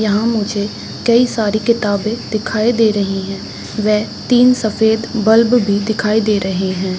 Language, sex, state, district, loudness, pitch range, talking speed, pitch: Hindi, female, Bihar, Saran, -15 LUFS, 205-225 Hz, 155 wpm, 215 Hz